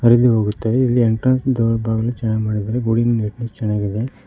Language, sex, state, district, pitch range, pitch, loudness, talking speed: Kannada, male, Karnataka, Koppal, 110-120 Hz, 115 Hz, -18 LUFS, 100 wpm